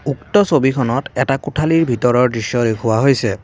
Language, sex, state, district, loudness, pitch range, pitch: Assamese, male, Assam, Kamrup Metropolitan, -16 LUFS, 115-145 Hz, 125 Hz